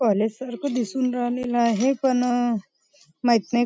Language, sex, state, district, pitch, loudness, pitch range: Marathi, female, Maharashtra, Nagpur, 245 Hz, -23 LUFS, 230-255 Hz